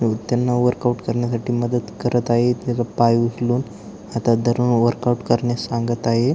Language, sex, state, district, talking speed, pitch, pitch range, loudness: Marathi, male, Maharashtra, Aurangabad, 140 wpm, 120 Hz, 115-120 Hz, -20 LUFS